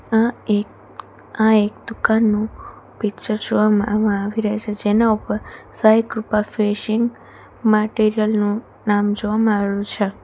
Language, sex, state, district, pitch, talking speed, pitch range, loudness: Gujarati, female, Gujarat, Valsad, 215 Hz, 135 wpm, 210-220 Hz, -19 LUFS